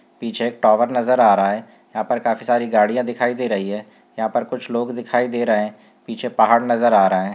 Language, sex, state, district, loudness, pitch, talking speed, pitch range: Hindi, male, Uttarakhand, Uttarkashi, -19 LUFS, 120 Hz, 245 wpm, 110-120 Hz